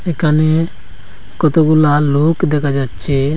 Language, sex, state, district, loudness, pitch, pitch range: Bengali, male, Assam, Hailakandi, -14 LUFS, 150 Hz, 135-155 Hz